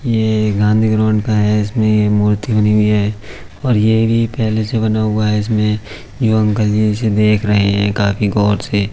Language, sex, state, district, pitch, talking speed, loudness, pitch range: Hindi, male, Uttar Pradesh, Budaun, 105 Hz, 215 wpm, -15 LUFS, 105-110 Hz